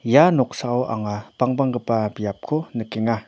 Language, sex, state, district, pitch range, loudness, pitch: Garo, male, Meghalaya, North Garo Hills, 110-130 Hz, -22 LUFS, 115 Hz